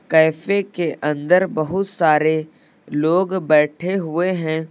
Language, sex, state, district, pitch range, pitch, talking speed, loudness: Hindi, male, Uttar Pradesh, Lucknow, 155-185 Hz, 160 Hz, 115 wpm, -19 LUFS